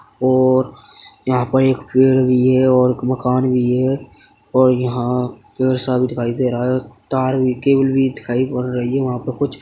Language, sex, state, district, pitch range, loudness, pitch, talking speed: Hindi, male, Uttar Pradesh, Hamirpur, 125-130 Hz, -17 LUFS, 130 Hz, 205 wpm